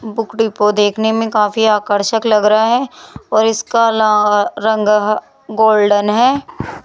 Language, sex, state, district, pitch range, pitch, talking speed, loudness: Hindi, female, Rajasthan, Jaipur, 210-225 Hz, 220 Hz, 140 wpm, -14 LUFS